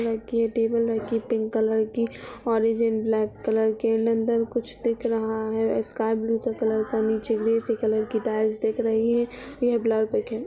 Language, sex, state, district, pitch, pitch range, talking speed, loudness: Hindi, female, Uttar Pradesh, Budaun, 225 Hz, 220-230 Hz, 190 wpm, -25 LUFS